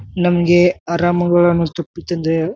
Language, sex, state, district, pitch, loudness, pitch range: Kannada, male, Karnataka, Bijapur, 175 Hz, -15 LUFS, 170-175 Hz